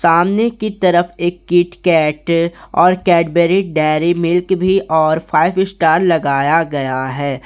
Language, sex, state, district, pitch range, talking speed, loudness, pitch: Hindi, male, Jharkhand, Garhwa, 155-180 Hz, 130 wpm, -14 LUFS, 170 Hz